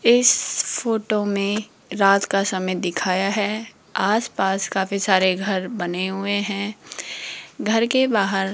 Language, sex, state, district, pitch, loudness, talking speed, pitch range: Hindi, female, Rajasthan, Jaipur, 200 Hz, -21 LUFS, 140 wpm, 190-215 Hz